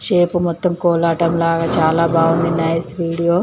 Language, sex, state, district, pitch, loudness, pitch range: Telugu, female, Andhra Pradesh, Chittoor, 170 Hz, -16 LUFS, 165-170 Hz